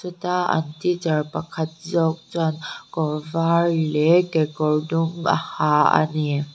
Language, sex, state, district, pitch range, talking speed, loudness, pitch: Mizo, female, Mizoram, Aizawl, 155-170 Hz, 130 wpm, -22 LUFS, 160 Hz